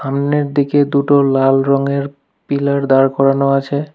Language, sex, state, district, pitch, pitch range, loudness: Bengali, male, West Bengal, Alipurduar, 140 Hz, 135-140 Hz, -14 LUFS